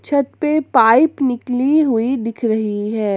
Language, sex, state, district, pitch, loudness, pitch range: Hindi, female, Jharkhand, Ranchi, 245 Hz, -16 LUFS, 225-285 Hz